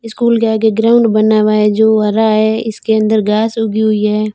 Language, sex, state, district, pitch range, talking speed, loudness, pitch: Hindi, female, Rajasthan, Barmer, 215-225 Hz, 220 wpm, -12 LUFS, 220 Hz